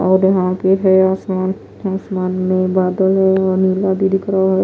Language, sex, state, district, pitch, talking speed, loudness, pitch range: Hindi, female, Odisha, Nuapada, 190 Hz, 195 wpm, -15 LUFS, 185-190 Hz